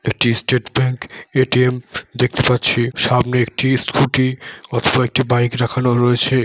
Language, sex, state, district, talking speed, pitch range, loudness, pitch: Bengali, male, West Bengal, Jalpaiguri, 130 wpm, 120-130 Hz, -16 LUFS, 125 Hz